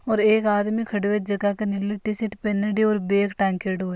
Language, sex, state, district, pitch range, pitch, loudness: Marwari, female, Rajasthan, Nagaur, 200-215 Hz, 205 Hz, -23 LUFS